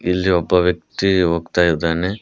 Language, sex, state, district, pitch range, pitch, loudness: Kannada, male, Karnataka, Koppal, 85-90 Hz, 90 Hz, -17 LUFS